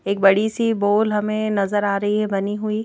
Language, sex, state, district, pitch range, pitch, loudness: Hindi, female, Madhya Pradesh, Bhopal, 200-215 Hz, 210 Hz, -20 LUFS